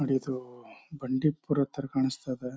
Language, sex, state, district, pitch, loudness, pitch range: Kannada, male, Karnataka, Chamarajanagar, 135 Hz, -31 LUFS, 130-140 Hz